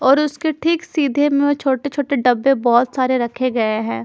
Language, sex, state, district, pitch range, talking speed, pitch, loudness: Hindi, female, Punjab, Fazilka, 250-285 Hz, 190 wpm, 270 Hz, -17 LUFS